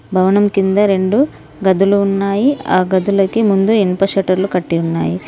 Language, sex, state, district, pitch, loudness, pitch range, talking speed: Telugu, female, Telangana, Mahabubabad, 195 Hz, -14 LUFS, 185-200 Hz, 135 wpm